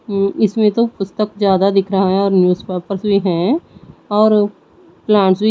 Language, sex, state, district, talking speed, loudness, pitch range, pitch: Hindi, female, Odisha, Nuapada, 165 wpm, -15 LUFS, 190-215 Hz, 200 Hz